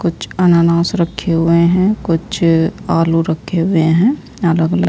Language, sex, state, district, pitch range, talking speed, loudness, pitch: Hindi, female, Uttar Pradesh, Saharanpur, 165-180 Hz, 145 wpm, -14 LUFS, 170 Hz